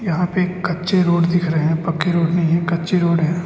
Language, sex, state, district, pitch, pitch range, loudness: Hindi, male, Arunachal Pradesh, Lower Dibang Valley, 175 Hz, 165-180 Hz, -18 LUFS